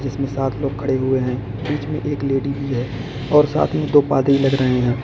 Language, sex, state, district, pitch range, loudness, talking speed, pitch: Hindi, male, Uttar Pradesh, Lalitpur, 130-140 Hz, -19 LUFS, 240 wpm, 135 Hz